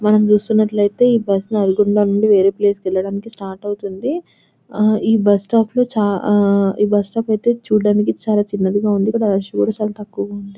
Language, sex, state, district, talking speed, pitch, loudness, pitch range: Telugu, female, Telangana, Nalgonda, 130 wpm, 205 Hz, -16 LUFS, 200-215 Hz